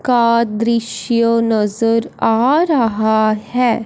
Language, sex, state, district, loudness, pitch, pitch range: Hindi, male, Punjab, Fazilka, -15 LUFS, 230 Hz, 225-235 Hz